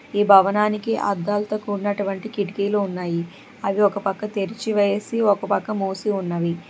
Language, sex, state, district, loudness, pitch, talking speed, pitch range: Telugu, female, Telangana, Hyderabad, -22 LUFS, 205 Hz, 145 wpm, 195-210 Hz